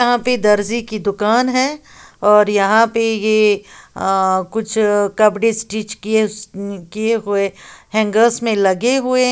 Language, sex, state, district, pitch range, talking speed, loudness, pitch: Hindi, female, Uttar Pradesh, Lalitpur, 205-230 Hz, 150 wpm, -16 LUFS, 215 Hz